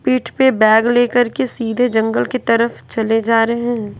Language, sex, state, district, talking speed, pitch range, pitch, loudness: Hindi, female, Bihar, West Champaran, 210 wpm, 225-245 Hz, 235 Hz, -15 LUFS